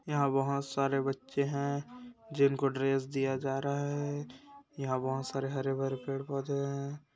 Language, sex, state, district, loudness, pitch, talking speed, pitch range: Hindi, male, Chhattisgarh, Bastar, -33 LUFS, 140 Hz, 150 wpm, 135-140 Hz